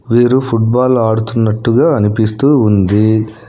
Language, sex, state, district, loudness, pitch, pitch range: Telugu, male, Telangana, Hyderabad, -12 LUFS, 115 Hz, 110-120 Hz